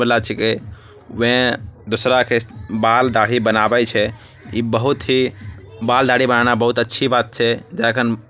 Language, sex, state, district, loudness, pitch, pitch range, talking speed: Angika, male, Bihar, Bhagalpur, -17 LUFS, 115 Hz, 110-120 Hz, 160 wpm